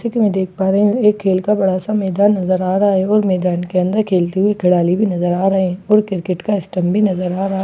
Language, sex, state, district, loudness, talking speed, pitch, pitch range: Hindi, female, Bihar, Katihar, -16 LUFS, 305 wpm, 190 Hz, 185-205 Hz